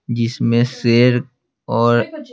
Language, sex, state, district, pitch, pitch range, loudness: Hindi, male, Bihar, Patna, 120 Hz, 115-125 Hz, -16 LUFS